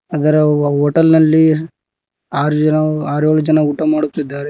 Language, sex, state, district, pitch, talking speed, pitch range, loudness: Kannada, male, Karnataka, Koppal, 155 Hz, 135 wpm, 150-155 Hz, -14 LUFS